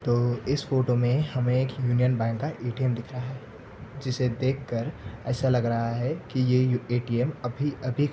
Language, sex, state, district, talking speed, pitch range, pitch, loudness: Hindi, male, Maharashtra, Aurangabad, 185 wpm, 120-130 Hz, 125 Hz, -27 LUFS